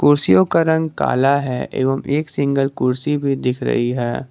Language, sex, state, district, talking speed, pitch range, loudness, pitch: Hindi, male, Jharkhand, Garhwa, 180 wpm, 125-145 Hz, -18 LUFS, 135 Hz